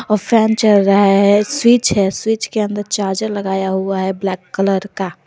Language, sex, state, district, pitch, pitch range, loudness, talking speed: Hindi, female, Jharkhand, Garhwa, 200 Hz, 190-215 Hz, -15 LUFS, 180 wpm